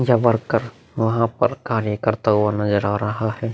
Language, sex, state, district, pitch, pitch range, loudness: Hindi, male, Bihar, Vaishali, 110 Hz, 105-115 Hz, -20 LUFS